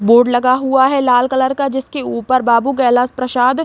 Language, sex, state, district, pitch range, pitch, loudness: Hindi, female, Bihar, Saran, 245-265 Hz, 255 Hz, -14 LUFS